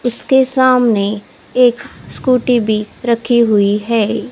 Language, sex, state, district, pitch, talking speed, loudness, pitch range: Hindi, female, Odisha, Khordha, 235 Hz, 110 wpm, -14 LUFS, 215-250 Hz